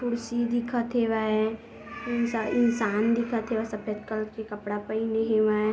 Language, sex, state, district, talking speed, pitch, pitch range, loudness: Chhattisgarhi, female, Chhattisgarh, Bilaspur, 135 wpm, 225 Hz, 215-235 Hz, -27 LUFS